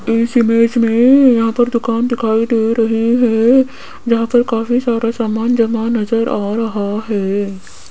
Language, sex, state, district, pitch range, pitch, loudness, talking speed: Hindi, female, Rajasthan, Jaipur, 225-235 Hz, 230 Hz, -14 LUFS, 145 wpm